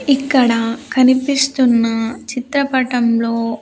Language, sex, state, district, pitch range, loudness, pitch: Telugu, female, Andhra Pradesh, Sri Satya Sai, 230-270 Hz, -15 LUFS, 250 Hz